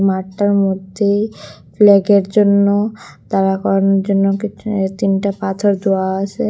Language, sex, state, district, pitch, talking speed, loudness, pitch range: Bengali, female, Tripura, West Tripura, 195 Hz, 110 wpm, -15 LUFS, 195-205 Hz